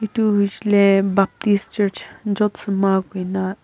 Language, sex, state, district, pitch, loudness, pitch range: Nagamese, female, Nagaland, Kohima, 200 Hz, -19 LUFS, 195-210 Hz